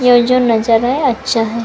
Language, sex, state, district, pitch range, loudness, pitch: Hindi, female, Karnataka, Bangalore, 230-255 Hz, -13 LUFS, 240 Hz